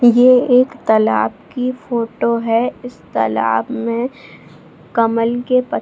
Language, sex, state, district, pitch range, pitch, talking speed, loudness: Hindi, female, Bihar, Jahanabad, 220-250 Hz, 235 Hz, 135 wpm, -16 LUFS